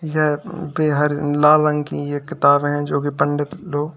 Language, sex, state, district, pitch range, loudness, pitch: Hindi, male, Uttar Pradesh, Lalitpur, 145-155 Hz, -19 LUFS, 150 Hz